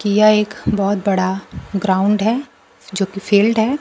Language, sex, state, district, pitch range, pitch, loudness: Hindi, female, Bihar, Kaimur, 195-215 Hz, 205 Hz, -17 LUFS